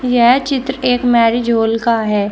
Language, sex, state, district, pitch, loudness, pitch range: Hindi, female, Uttar Pradesh, Shamli, 240 Hz, -14 LUFS, 230-250 Hz